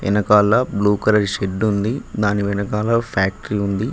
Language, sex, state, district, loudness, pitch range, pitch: Telugu, male, Telangana, Mahabubabad, -18 LUFS, 100-105 Hz, 105 Hz